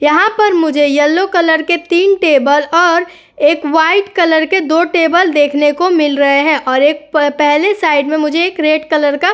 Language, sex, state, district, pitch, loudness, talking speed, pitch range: Hindi, female, Uttar Pradesh, Etah, 315 Hz, -11 LUFS, 205 wpm, 295-350 Hz